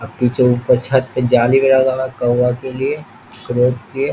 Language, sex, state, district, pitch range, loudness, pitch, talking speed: Hindi, male, Bihar, East Champaran, 125-130 Hz, -16 LUFS, 125 Hz, 190 wpm